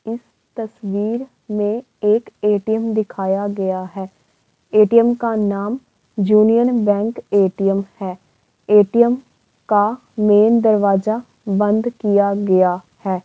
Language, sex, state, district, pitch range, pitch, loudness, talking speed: Hindi, female, Uttar Pradesh, Varanasi, 200-225 Hz, 210 Hz, -17 LUFS, 110 wpm